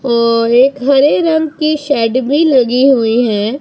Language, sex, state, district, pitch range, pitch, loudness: Hindi, female, Punjab, Pathankot, 235-290 Hz, 260 Hz, -11 LUFS